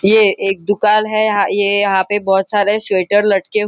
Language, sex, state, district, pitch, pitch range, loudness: Hindi, male, Maharashtra, Nagpur, 205 Hz, 195-210 Hz, -13 LUFS